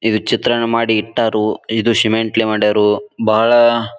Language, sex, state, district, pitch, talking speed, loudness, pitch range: Kannada, male, Karnataka, Bijapur, 110 Hz, 120 wpm, -15 LUFS, 110-115 Hz